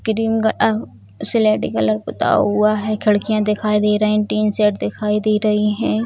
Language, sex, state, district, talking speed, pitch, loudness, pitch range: Hindi, female, Bihar, Purnia, 170 wpm, 210 Hz, -18 LUFS, 210-215 Hz